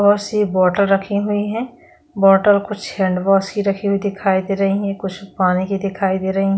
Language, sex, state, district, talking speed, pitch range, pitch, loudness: Hindi, female, Chhattisgarh, Korba, 200 wpm, 195-205 Hz, 195 Hz, -18 LUFS